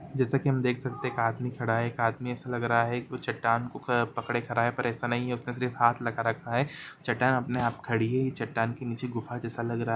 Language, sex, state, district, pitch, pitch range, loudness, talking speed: Hindi, male, Jharkhand, Jamtara, 120 Hz, 115-125 Hz, -29 LUFS, 275 wpm